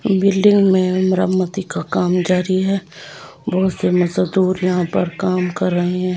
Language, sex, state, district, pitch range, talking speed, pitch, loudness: Hindi, female, Delhi, New Delhi, 180-190 Hz, 155 wpm, 185 Hz, -17 LUFS